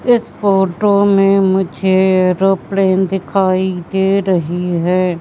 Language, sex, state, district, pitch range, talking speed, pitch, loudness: Hindi, female, Madhya Pradesh, Katni, 185-195 Hz, 105 wpm, 190 Hz, -14 LUFS